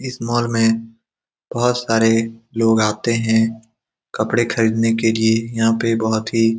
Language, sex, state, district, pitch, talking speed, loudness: Hindi, male, Bihar, Saran, 115 Hz, 155 wpm, -18 LUFS